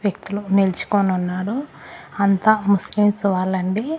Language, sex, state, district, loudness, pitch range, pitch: Telugu, female, Andhra Pradesh, Annamaya, -20 LUFS, 190-210 Hz, 200 Hz